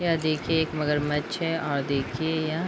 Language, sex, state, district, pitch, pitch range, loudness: Hindi, female, Bihar, Madhepura, 155 Hz, 150-160 Hz, -26 LUFS